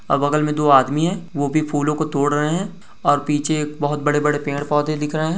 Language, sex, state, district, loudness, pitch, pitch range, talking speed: Hindi, male, Bihar, Araria, -19 LUFS, 150 Hz, 145-155 Hz, 245 wpm